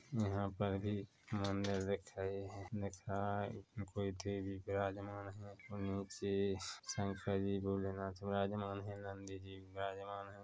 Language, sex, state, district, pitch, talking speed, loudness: Hindi, male, Chhattisgarh, Korba, 100 Hz, 155 wpm, -42 LUFS